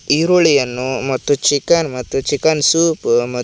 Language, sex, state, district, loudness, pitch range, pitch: Kannada, male, Karnataka, Koppal, -15 LUFS, 130-160 Hz, 145 Hz